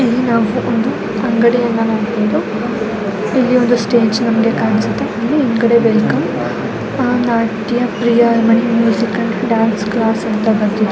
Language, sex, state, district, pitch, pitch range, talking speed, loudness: Kannada, female, Karnataka, Mysore, 230 Hz, 220-235 Hz, 60 wpm, -14 LUFS